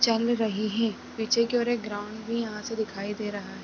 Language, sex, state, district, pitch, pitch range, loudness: Hindi, female, Chhattisgarh, Raigarh, 220 Hz, 210-230 Hz, -28 LUFS